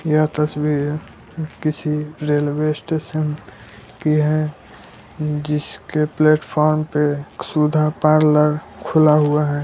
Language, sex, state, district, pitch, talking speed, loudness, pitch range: Hindi, male, Bihar, Muzaffarpur, 150 Hz, 95 wpm, -19 LUFS, 150-155 Hz